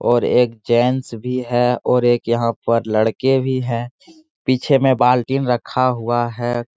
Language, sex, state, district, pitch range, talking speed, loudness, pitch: Hindi, male, Bihar, Jahanabad, 120-130 Hz, 170 wpm, -18 LUFS, 125 Hz